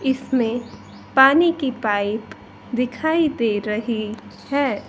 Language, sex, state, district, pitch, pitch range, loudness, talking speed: Hindi, female, Haryana, Rohtak, 245 Hz, 220-275 Hz, -20 LUFS, 100 wpm